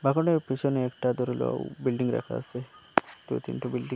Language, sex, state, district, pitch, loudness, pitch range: Bengali, male, Assam, Hailakandi, 125 Hz, -29 LUFS, 80-130 Hz